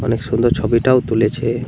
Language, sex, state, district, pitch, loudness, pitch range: Bengali, male, Jharkhand, Jamtara, 115 Hz, -16 LUFS, 110-125 Hz